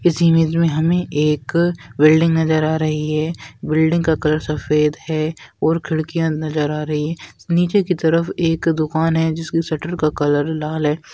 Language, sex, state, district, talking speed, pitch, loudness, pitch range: Hindi, female, Bihar, Madhepura, 180 wpm, 160 Hz, -18 LUFS, 155-165 Hz